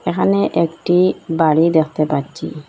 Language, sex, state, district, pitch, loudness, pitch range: Bengali, female, Assam, Hailakandi, 160 Hz, -16 LUFS, 150-165 Hz